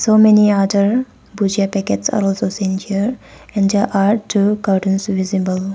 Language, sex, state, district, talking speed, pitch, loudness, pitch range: English, female, Arunachal Pradesh, Papum Pare, 155 wpm, 200 Hz, -16 LUFS, 195-210 Hz